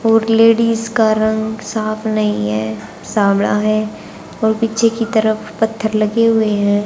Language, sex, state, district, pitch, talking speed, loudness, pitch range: Hindi, female, Haryana, Charkhi Dadri, 220 Hz, 150 wpm, -16 LUFS, 210-225 Hz